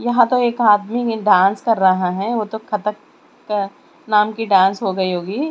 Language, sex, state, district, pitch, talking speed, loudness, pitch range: Hindi, female, Chandigarh, Chandigarh, 210 Hz, 205 wpm, -17 LUFS, 195-235 Hz